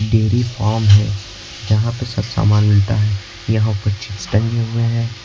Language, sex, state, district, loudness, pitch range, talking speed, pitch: Hindi, male, Uttar Pradesh, Lucknow, -17 LUFS, 105-115 Hz, 170 wpm, 110 Hz